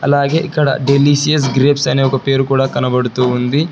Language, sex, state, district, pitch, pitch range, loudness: Telugu, male, Telangana, Hyderabad, 135 Hz, 130-145 Hz, -14 LUFS